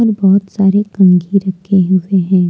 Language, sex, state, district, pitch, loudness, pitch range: Hindi, female, Jharkhand, Deoghar, 195 Hz, -12 LUFS, 185-200 Hz